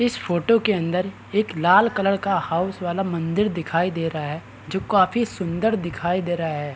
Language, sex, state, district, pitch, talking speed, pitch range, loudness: Hindi, male, Bihar, Araria, 180 Hz, 195 wpm, 165-195 Hz, -22 LUFS